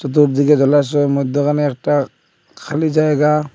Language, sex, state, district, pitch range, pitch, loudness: Bengali, male, Assam, Hailakandi, 140-150 Hz, 145 Hz, -15 LUFS